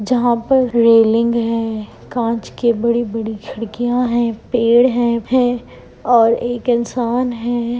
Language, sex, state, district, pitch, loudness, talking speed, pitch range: Hindi, female, Bihar, Gaya, 235 Hz, -16 LUFS, 125 wpm, 230-245 Hz